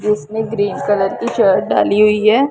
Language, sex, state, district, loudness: Hindi, female, Punjab, Pathankot, -15 LUFS